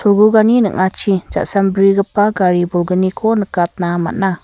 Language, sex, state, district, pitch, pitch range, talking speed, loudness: Garo, female, Meghalaya, West Garo Hills, 195 Hz, 180-210 Hz, 95 wpm, -14 LUFS